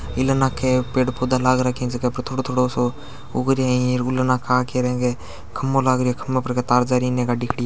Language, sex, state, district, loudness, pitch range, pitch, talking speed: Marwari, male, Rajasthan, Churu, -21 LUFS, 125-130 Hz, 125 Hz, 265 wpm